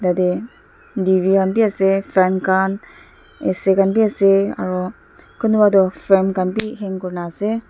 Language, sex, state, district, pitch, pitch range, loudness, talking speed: Nagamese, female, Nagaland, Dimapur, 195 Hz, 185-210 Hz, -18 LUFS, 165 wpm